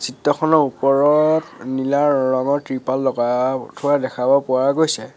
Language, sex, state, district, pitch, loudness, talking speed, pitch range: Assamese, male, Assam, Sonitpur, 135 Hz, -18 LUFS, 125 wpm, 130-145 Hz